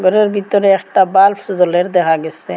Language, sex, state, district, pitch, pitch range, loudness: Bengali, female, Assam, Hailakandi, 190 Hz, 180-200 Hz, -13 LUFS